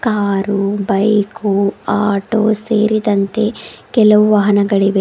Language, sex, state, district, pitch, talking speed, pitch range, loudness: Kannada, female, Karnataka, Bidar, 205 Hz, 70 wpm, 200-215 Hz, -14 LUFS